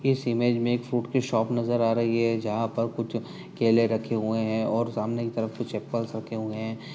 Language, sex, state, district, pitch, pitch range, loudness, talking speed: Hindi, male, Uttar Pradesh, Budaun, 115 Hz, 110-120 Hz, -27 LUFS, 235 wpm